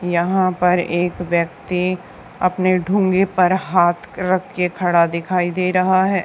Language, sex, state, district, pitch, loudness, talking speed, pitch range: Hindi, female, Haryana, Charkhi Dadri, 180 Hz, -18 LUFS, 145 wpm, 175-185 Hz